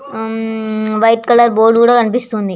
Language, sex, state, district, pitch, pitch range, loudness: Telugu, female, Andhra Pradesh, Visakhapatnam, 225 Hz, 220-235 Hz, -12 LUFS